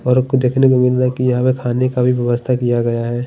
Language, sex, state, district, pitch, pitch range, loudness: Hindi, male, Bihar, Patna, 125 Hz, 120-130 Hz, -16 LUFS